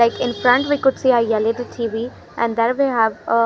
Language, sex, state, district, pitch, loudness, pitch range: English, female, Haryana, Rohtak, 235 Hz, -18 LUFS, 230-250 Hz